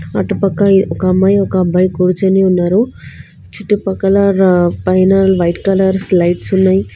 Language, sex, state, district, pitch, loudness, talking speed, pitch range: Telugu, female, Telangana, Hyderabad, 190 Hz, -12 LUFS, 130 wpm, 185-195 Hz